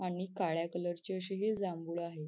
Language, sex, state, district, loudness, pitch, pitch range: Marathi, female, Maharashtra, Nagpur, -37 LUFS, 180 Hz, 170-190 Hz